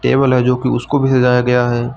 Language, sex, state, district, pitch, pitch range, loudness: Hindi, male, Uttar Pradesh, Lucknow, 125 Hz, 125-130 Hz, -14 LUFS